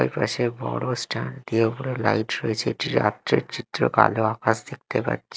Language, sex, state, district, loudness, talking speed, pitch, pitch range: Bengali, male, Odisha, Malkangiri, -24 LUFS, 155 wpm, 115 Hz, 110-130 Hz